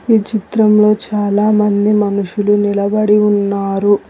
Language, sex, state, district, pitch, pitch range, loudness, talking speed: Telugu, female, Telangana, Hyderabad, 210 Hz, 200-210 Hz, -13 LUFS, 90 wpm